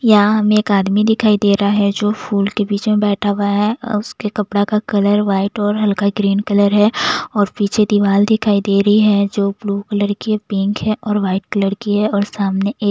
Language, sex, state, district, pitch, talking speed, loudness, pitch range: Hindi, female, Punjab, Kapurthala, 205 Hz, 230 wpm, -16 LUFS, 200-210 Hz